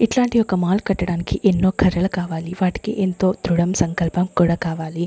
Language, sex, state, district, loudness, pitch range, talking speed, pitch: Telugu, female, Andhra Pradesh, Sri Satya Sai, -20 LUFS, 170-195 Hz, 155 wpm, 180 Hz